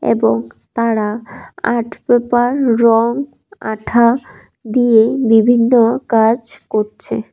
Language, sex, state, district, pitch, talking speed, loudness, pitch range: Bengali, female, Tripura, West Tripura, 230 Hz, 80 wpm, -14 LUFS, 215-245 Hz